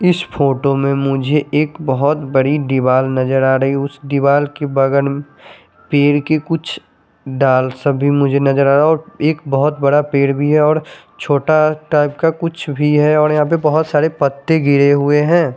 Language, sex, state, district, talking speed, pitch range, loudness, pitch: Hindi, male, Chandigarh, Chandigarh, 190 wpm, 140-150 Hz, -14 LUFS, 145 Hz